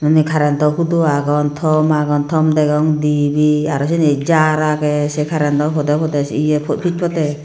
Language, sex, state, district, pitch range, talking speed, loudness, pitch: Chakma, female, Tripura, Unakoti, 150-155 Hz, 160 wpm, -15 LUFS, 150 Hz